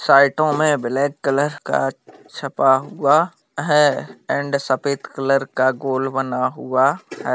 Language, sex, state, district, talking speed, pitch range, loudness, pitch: Hindi, male, Bihar, Bhagalpur, 120 wpm, 135-145 Hz, -19 LUFS, 140 Hz